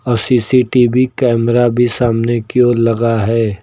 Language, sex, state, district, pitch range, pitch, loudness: Hindi, male, Uttar Pradesh, Lucknow, 115-125 Hz, 120 Hz, -13 LUFS